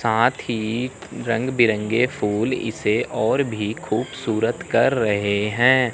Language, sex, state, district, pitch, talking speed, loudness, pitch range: Hindi, male, Chandigarh, Chandigarh, 115 Hz, 120 wpm, -21 LUFS, 110-125 Hz